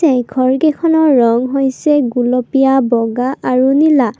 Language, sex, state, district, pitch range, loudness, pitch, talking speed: Assamese, female, Assam, Kamrup Metropolitan, 250-290 Hz, -13 LUFS, 265 Hz, 130 wpm